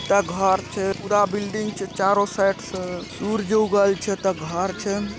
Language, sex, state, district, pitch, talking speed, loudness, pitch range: Hindi, male, Bihar, Araria, 200 Hz, 175 wpm, -22 LUFS, 190-205 Hz